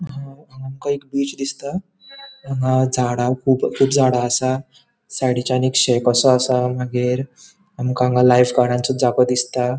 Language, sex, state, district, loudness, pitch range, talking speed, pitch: Konkani, male, Goa, North and South Goa, -18 LUFS, 125-140 Hz, 135 wpm, 130 Hz